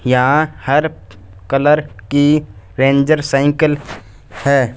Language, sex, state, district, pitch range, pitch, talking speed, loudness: Hindi, male, Punjab, Fazilka, 115-150 Hz, 140 Hz, 90 wpm, -15 LUFS